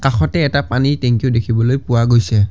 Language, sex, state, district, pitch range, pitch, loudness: Assamese, male, Assam, Kamrup Metropolitan, 115-135 Hz, 120 Hz, -15 LUFS